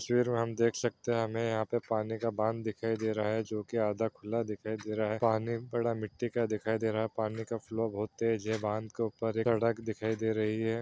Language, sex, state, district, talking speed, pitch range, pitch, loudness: Hindi, male, Bihar, Saran, 260 wpm, 110-115 Hz, 110 Hz, -33 LUFS